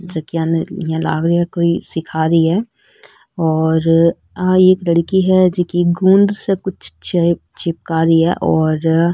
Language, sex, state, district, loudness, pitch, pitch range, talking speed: Rajasthani, female, Rajasthan, Nagaur, -15 LUFS, 170 Hz, 165-185 Hz, 150 wpm